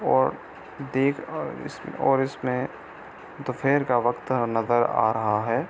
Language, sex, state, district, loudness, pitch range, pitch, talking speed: Hindi, male, Bihar, East Champaran, -25 LUFS, 120-140 Hz, 125 Hz, 125 wpm